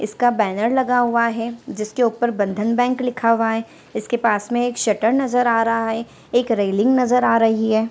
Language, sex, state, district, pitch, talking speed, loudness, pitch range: Hindi, female, Bihar, Darbhanga, 230 Hz, 205 wpm, -19 LUFS, 225-245 Hz